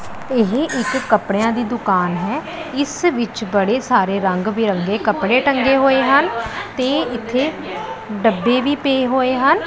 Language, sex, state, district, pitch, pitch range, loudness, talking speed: Punjabi, female, Punjab, Pathankot, 250 Hz, 215-270 Hz, -18 LUFS, 145 wpm